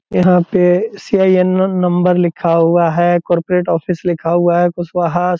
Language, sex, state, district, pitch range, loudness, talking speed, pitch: Hindi, male, Bihar, Purnia, 175-180 Hz, -14 LUFS, 165 wpm, 175 Hz